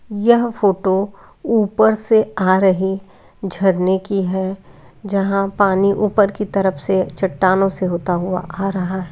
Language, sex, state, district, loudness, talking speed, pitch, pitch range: Hindi, female, Bihar, Lakhisarai, -17 LUFS, 150 wpm, 195 Hz, 190-200 Hz